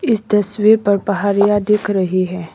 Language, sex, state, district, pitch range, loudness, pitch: Hindi, female, Arunachal Pradesh, Lower Dibang Valley, 190-210 Hz, -15 LUFS, 205 Hz